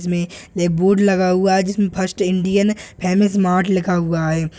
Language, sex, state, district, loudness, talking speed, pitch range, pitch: Hindi, male, Bihar, Purnia, -17 LUFS, 170 wpm, 175-195 Hz, 185 Hz